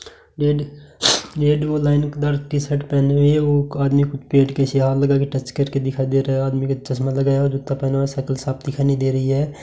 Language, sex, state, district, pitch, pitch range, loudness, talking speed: Hindi, male, Rajasthan, Bikaner, 140 Hz, 135-145 Hz, -19 LUFS, 250 wpm